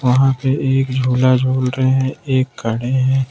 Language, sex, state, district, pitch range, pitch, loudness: Hindi, male, Jharkhand, Ranchi, 130-135 Hz, 130 Hz, -16 LUFS